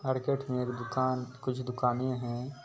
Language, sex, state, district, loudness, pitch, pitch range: Maithili, male, Bihar, Supaul, -33 LUFS, 130 Hz, 125-130 Hz